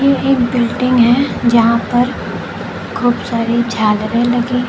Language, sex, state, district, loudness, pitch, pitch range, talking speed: Hindi, female, Uttar Pradesh, Lucknow, -14 LUFS, 240 Hz, 235-245 Hz, 140 wpm